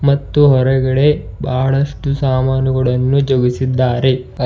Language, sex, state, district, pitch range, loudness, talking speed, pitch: Kannada, male, Karnataka, Bidar, 130-140 Hz, -15 LUFS, 80 wpm, 130 Hz